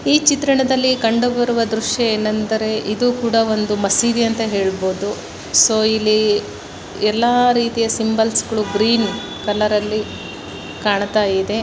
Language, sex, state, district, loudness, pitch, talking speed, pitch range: Kannada, male, Karnataka, Mysore, -17 LUFS, 220 Hz, 120 wpm, 210-235 Hz